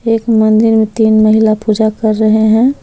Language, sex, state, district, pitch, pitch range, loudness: Hindi, female, Jharkhand, Palamu, 220 Hz, 215-225 Hz, -10 LUFS